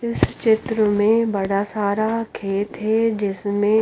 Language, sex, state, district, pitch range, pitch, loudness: Hindi, female, Haryana, Rohtak, 205-225 Hz, 215 Hz, -20 LUFS